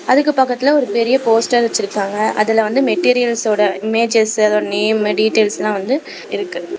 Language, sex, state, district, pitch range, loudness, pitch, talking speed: Tamil, female, Tamil Nadu, Namakkal, 215-250 Hz, -15 LUFS, 225 Hz, 130 wpm